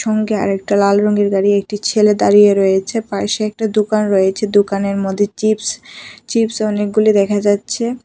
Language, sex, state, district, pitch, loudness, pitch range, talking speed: Bengali, female, Tripura, West Tripura, 205 Hz, -15 LUFS, 200-215 Hz, 150 wpm